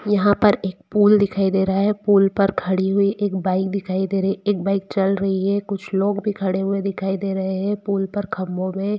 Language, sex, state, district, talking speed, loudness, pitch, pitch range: Hindi, female, Jharkhand, Jamtara, 240 wpm, -20 LUFS, 195 Hz, 190-205 Hz